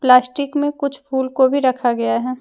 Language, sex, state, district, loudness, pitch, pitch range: Hindi, female, Jharkhand, Deoghar, -18 LUFS, 260 Hz, 250-280 Hz